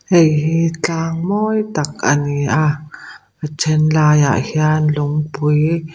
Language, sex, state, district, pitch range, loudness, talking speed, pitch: Mizo, female, Mizoram, Aizawl, 150-165 Hz, -16 LUFS, 140 wpm, 155 Hz